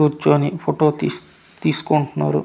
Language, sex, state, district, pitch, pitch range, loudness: Telugu, male, Andhra Pradesh, Manyam, 150 Hz, 125-150 Hz, -19 LUFS